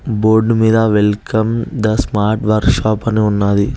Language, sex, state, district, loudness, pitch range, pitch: Telugu, male, Telangana, Hyderabad, -14 LUFS, 105-110 Hz, 110 Hz